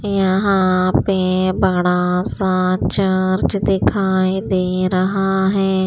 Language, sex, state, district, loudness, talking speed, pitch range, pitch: Hindi, female, Maharashtra, Washim, -17 LUFS, 90 wpm, 185-195 Hz, 185 Hz